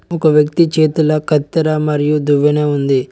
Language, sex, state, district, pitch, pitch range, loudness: Telugu, male, Telangana, Mahabubabad, 150 Hz, 145-155 Hz, -14 LUFS